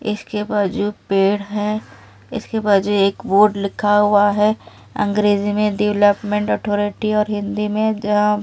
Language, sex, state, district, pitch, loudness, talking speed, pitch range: Hindi, female, Delhi, New Delhi, 210 Hz, -18 LUFS, 140 wpm, 205-210 Hz